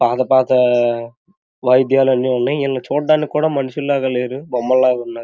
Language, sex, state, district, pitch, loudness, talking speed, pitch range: Telugu, male, Andhra Pradesh, Krishna, 130 Hz, -16 LUFS, 125 wpm, 125-140 Hz